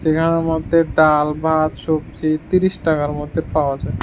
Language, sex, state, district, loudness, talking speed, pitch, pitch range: Bengali, male, Tripura, West Tripura, -18 LUFS, 135 wpm, 155 Hz, 150-160 Hz